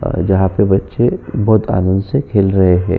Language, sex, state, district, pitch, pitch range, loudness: Hindi, male, Uttar Pradesh, Jyotiba Phule Nagar, 95 Hz, 95-110 Hz, -14 LUFS